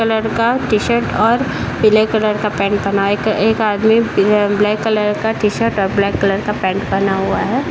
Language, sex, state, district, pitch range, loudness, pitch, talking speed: Hindi, male, Bihar, Jahanabad, 200-220 Hz, -15 LUFS, 210 Hz, 220 wpm